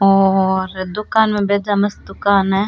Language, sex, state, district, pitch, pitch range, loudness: Rajasthani, female, Rajasthan, Churu, 200 Hz, 190-205 Hz, -16 LUFS